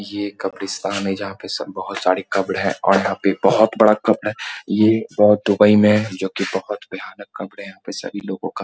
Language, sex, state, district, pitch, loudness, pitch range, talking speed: Hindi, male, Bihar, Muzaffarpur, 100 Hz, -19 LUFS, 95-105 Hz, 245 wpm